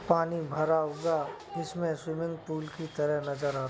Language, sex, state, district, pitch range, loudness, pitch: Hindi, male, Uttar Pradesh, Jalaun, 150-165 Hz, -32 LUFS, 160 Hz